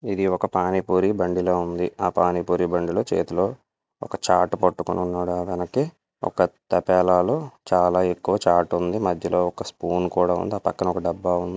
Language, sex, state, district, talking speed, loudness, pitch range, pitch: Telugu, male, Andhra Pradesh, Visakhapatnam, 170 wpm, -23 LUFS, 90-95 Hz, 90 Hz